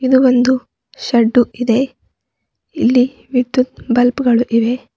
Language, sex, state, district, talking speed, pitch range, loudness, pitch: Kannada, female, Karnataka, Bidar, 110 wpm, 240-255 Hz, -15 LUFS, 250 Hz